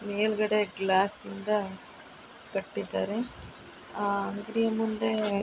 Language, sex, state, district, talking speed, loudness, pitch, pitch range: Kannada, female, Karnataka, Mysore, 90 wpm, -30 LUFS, 210 Hz, 200-215 Hz